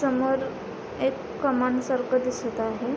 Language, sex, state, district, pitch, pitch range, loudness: Marathi, female, Maharashtra, Sindhudurg, 255 Hz, 250-265 Hz, -27 LUFS